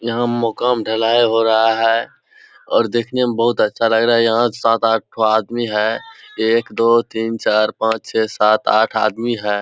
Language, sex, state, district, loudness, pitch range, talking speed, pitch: Hindi, male, Bihar, Supaul, -16 LUFS, 110-120 Hz, 185 wpm, 115 Hz